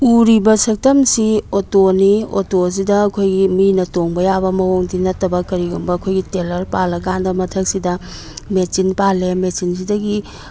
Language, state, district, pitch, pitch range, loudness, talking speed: Manipuri, Manipur, Imphal West, 190 Hz, 185-200 Hz, -16 LUFS, 125 wpm